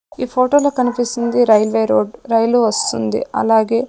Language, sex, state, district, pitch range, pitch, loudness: Telugu, female, Andhra Pradesh, Sri Satya Sai, 215-250 Hz, 235 Hz, -16 LUFS